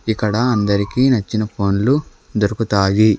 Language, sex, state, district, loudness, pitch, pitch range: Telugu, male, Andhra Pradesh, Sri Satya Sai, -17 LUFS, 110 Hz, 100-120 Hz